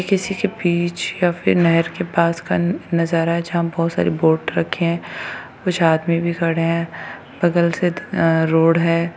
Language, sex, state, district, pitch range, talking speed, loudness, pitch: Hindi, female, Rajasthan, Churu, 165-175 Hz, 170 wpm, -19 LUFS, 170 Hz